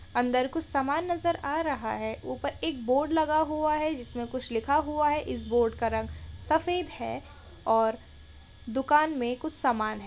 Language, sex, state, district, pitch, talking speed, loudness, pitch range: Hindi, female, Chhattisgarh, Sukma, 280 Hz, 180 wpm, -28 LUFS, 240-310 Hz